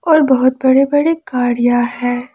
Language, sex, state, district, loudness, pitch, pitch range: Hindi, female, Jharkhand, Palamu, -14 LUFS, 260 Hz, 245-290 Hz